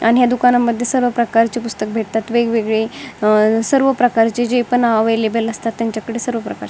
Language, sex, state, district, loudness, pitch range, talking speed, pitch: Marathi, female, Maharashtra, Dhule, -16 LUFS, 225-245 Hz, 150 wpm, 230 Hz